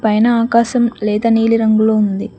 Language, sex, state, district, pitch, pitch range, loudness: Telugu, female, Telangana, Mahabubabad, 225 Hz, 215-230 Hz, -14 LUFS